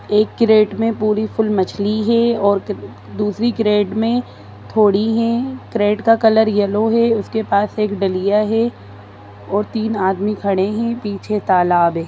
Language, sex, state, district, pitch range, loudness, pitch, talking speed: Hindi, female, Bihar, Lakhisarai, 200-225 Hz, -17 LUFS, 210 Hz, 155 wpm